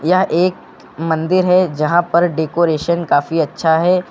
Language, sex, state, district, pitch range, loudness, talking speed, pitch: Hindi, male, Uttar Pradesh, Lucknow, 160-180 Hz, -15 LUFS, 145 wpm, 170 Hz